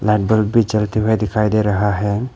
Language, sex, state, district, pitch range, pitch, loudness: Hindi, male, Arunachal Pradesh, Papum Pare, 105-110 Hz, 105 Hz, -17 LUFS